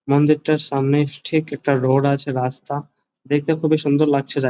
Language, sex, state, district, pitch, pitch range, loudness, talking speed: Bengali, male, West Bengal, Jalpaiguri, 145 Hz, 140-150 Hz, -19 LUFS, 175 wpm